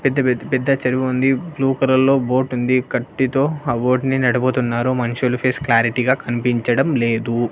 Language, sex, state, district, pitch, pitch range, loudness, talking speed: Telugu, male, Andhra Pradesh, Annamaya, 130 Hz, 120-135 Hz, -18 LUFS, 150 wpm